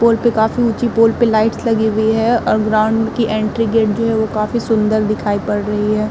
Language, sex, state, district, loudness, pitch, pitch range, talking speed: Hindi, female, Uttar Pradesh, Muzaffarnagar, -15 LUFS, 220 Hz, 215-230 Hz, 235 wpm